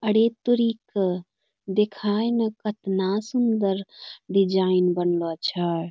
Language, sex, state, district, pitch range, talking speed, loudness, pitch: Angika, female, Bihar, Bhagalpur, 185-220 Hz, 100 wpm, -24 LUFS, 200 Hz